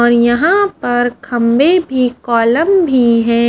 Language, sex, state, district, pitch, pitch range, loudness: Hindi, female, Haryana, Charkhi Dadri, 245 Hz, 235-305 Hz, -12 LUFS